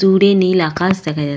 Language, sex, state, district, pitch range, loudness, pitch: Bengali, female, West Bengal, Jalpaiguri, 155-190 Hz, -14 LUFS, 185 Hz